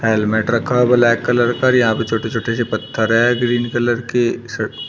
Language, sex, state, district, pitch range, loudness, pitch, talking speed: Hindi, male, Uttar Pradesh, Shamli, 115-120 Hz, -16 LUFS, 120 Hz, 210 wpm